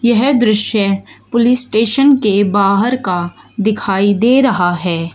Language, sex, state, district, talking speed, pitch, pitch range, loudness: Hindi, female, Uttar Pradesh, Shamli, 130 wpm, 215 Hz, 195-240 Hz, -13 LUFS